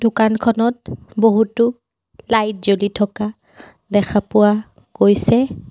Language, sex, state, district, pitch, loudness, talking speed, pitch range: Assamese, female, Assam, Sonitpur, 220 Hz, -17 LUFS, 85 wpm, 205-230 Hz